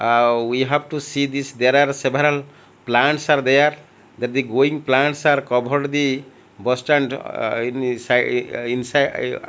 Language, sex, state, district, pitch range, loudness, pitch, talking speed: English, male, Odisha, Malkangiri, 125-145 Hz, -19 LUFS, 135 Hz, 165 wpm